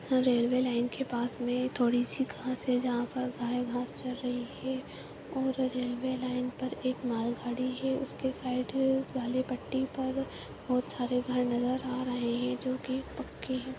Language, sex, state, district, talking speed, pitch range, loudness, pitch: Hindi, female, Bihar, Jahanabad, 170 wpm, 245-260 Hz, -32 LUFS, 255 Hz